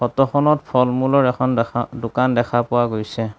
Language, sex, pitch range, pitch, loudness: Assamese, male, 120-130 Hz, 120 Hz, -18 LUFS